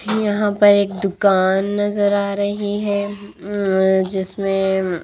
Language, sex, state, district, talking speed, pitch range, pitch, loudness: Hindi, female, Haryana, Rohtak, 120 wpm, 190-205 Hz, 200 Hz, -18 LUFS